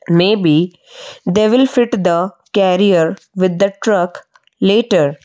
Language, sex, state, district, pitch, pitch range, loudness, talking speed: English, female, Odisha, Malkangiri, 195 Hz, 180-235 Hz, -14 LUFS, 135 wpm